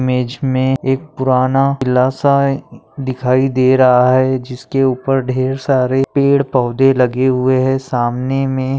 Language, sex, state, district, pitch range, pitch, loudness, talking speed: Hindi, male, Maharashtra, Aurangabad, 130-135 Hz, 130 Hz, -15 LUFS, 145 wpm